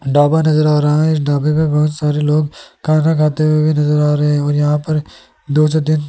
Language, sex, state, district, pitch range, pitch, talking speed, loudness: Hindi, male, Rajasthan, Jaipur, 150-155 Hz, 150 Hz, 235 wpm, -14 LUFS